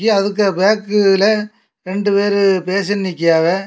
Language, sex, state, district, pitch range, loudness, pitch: Tamil, male, Tamil Nadu, Kanyakumari, 190-205 Hz, -15 LUFS, 200 Hz